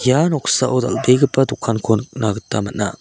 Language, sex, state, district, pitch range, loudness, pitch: Garo, male, Meghalaya, South Garo Hills, 110-130 Hz, -17 LUFS, 125 Hz